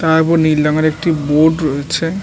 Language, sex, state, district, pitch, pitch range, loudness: Bengali, male, West Bengal, North 24 Parganas, 160 Hz, 150-165 Hz, -14 LUFS